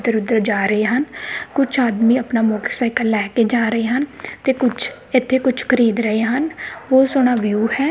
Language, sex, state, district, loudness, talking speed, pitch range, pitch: Punjabi, female, Punjab, Kapurthala, -18 LUFS, 190 wpm, 225-265 Hz, 245 Hz